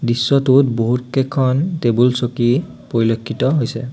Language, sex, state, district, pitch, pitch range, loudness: Assamese, male, Assam, Sonitpur, 125 Hz, 120-135 Hz, -17 LUFS